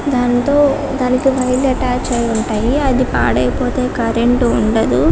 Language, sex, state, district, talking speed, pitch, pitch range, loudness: Telugu, female, Telangana, Karimnagar, 115 wpm, 255 Hz, 245-270 Hz, -15 LUFS